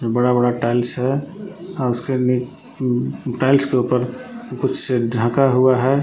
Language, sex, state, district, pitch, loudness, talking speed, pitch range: Hindi, male, Jharkhand, Palamu, 125 Hz, -19 LUFS, 140 wpm, 125-135 Hz